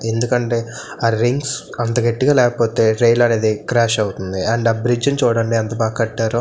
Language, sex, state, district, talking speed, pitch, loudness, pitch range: Telugu, male, Andhra Pradesh, Visakhapatnam, 180 wpm, 115 Hz, -17 LUFS, 115-120 Hz